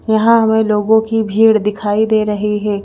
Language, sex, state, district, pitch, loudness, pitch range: Hindi, female, Madhya Pradesh, Bhopal, 220 Hz, -13 LUFS, 210-220 Hz